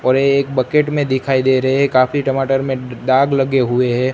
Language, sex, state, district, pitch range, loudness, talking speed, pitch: Hindi, male, Gujarat, Gandhinagar, 130-140 Hz, -16 LUFS, 215 wpm, 135 Hz